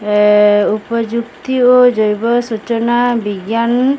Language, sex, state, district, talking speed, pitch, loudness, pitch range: Hindi, female, Odisha, Sambalpur, 105 wpm, 230 Hz, -13 LUFS, 210-245 Hz